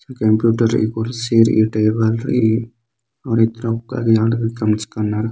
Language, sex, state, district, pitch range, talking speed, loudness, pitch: Sadri, male, Chhattisgarh, Jashpur, 110-115 Hz, 90 wpm, -17 LUFS, 115 Hz